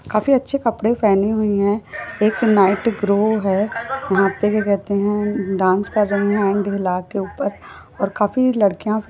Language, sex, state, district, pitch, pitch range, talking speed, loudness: Hindi, female, Maharashtra, Nagpur, 205 Hz, 200-220 Hz, 160 wpm, -18 LUFS